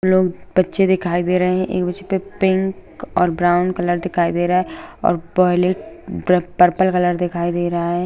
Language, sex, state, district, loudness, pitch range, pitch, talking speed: Hindi, female, Bihar, Saran, -18 LUFS, 175-185 Hz, 180 Hz, 185 wpm